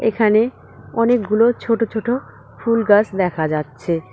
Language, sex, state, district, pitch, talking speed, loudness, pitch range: Bengali, female, West Bengal, Cooch Behar, 220 Hz, 100 wpm, -18 LUFS, 185-230 Hz